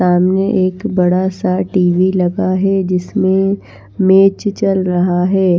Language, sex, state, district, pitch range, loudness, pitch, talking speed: Hindi, female, Bihar, Patna, 180-195 Hz, -14 LUFS, 190 Hz, 120 wpm